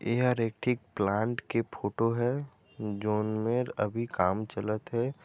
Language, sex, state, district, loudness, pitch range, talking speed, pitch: Chhattisgarhi, male, Chhattisgarh, Raigarh, -31 LUFS, 105-120 Hz, 150 wpm, 115 Hz